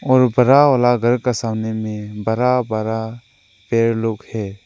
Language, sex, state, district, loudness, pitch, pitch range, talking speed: Hindi, male, Arunachal Pradesh, Lower Dibang Valley, -17 LUFS, 115 Hz, 110-125 Hz, 155 wpm